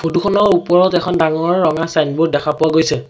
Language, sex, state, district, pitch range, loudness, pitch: Assamese, male, Assam, Sonitpur, 155-175 Hz, -15 LUFS, 165 Hz